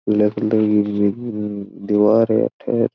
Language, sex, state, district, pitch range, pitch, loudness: Marwari, male, Rajasthan, Churu, 105-110 Hz, 105 Hz, -18 LUFS